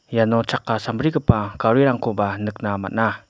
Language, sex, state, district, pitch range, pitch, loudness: Garo, male, Meghalaya, West Garo Hills, 105-120 Hz, 115 Hz, -21 LUFS